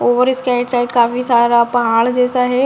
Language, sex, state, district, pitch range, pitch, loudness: Hindi, female, Bihar, Jamui, 240-250 Hz, 245 Hz, -14 LUFS